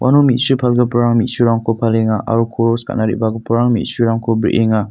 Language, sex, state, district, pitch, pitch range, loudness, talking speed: Garo, male, Meghalaya, North Garo Hills, 115 Hz, 115-120 Hz, -15 LUFS, 135 wpm